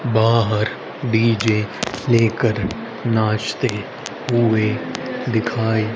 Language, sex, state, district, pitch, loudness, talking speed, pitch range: Hindi, male, Haryana, Rohtak, 110 Hz, -20 LUFS, 60 wpm, 110-115 Hz